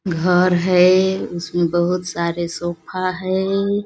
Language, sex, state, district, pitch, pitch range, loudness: Hindi, female, Chhattisgarh, Balrampur, 180 Hz, 175-185 Hz, -18 LUFS